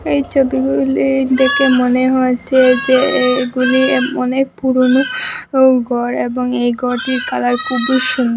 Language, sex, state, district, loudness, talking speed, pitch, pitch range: Bengali, female, Assam, Hailakandi, -14 LUFS, 120 wpm, 255 Hz, 245-265 Hz